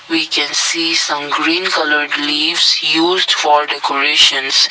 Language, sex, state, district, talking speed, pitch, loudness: English, male, Assam, Kamrup Metropolitan, 125 wpm, 160 Hz, -12 LUFS